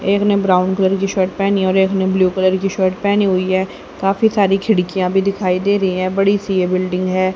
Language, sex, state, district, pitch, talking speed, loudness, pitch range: Hindi, female, Haryana, Charkhi Dadri, 190 Hz, 245 wpm, -16 LUFS, 185-195 Hz